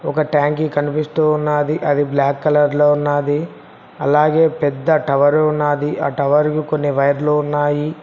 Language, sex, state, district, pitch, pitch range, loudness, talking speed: Telugu, male, Telangana, Mahabubabad, 150 Hz, 145-155 Hz, -16 LUFS, 135 wpm